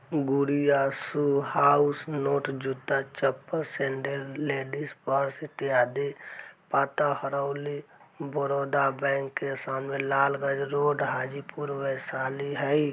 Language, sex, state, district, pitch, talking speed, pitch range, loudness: Bajjika, male, Bihar, Vaishali, 140 Hz, 95 wpm, 135-145 Hz, -28 LUFS